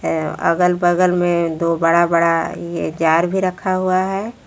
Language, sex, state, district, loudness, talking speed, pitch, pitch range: Hindi, female, Jharkhand, Palamu, -17 LUFS, 175 wpm, 175 Hz, 165-185 Hz